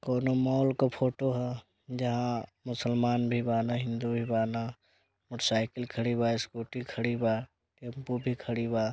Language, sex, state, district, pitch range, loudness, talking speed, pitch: Bhojpuri, male, Bihar, Gopalganj, 115-125 Hz, -31 LUFS, 150 wpm, 120 Hz